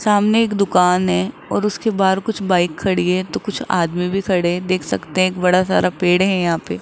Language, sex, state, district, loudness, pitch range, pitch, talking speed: Hindi, male, Rajasthan, Jaipur, -17 LUFS, 175-195 Hz, 185 Hz, 240 wpm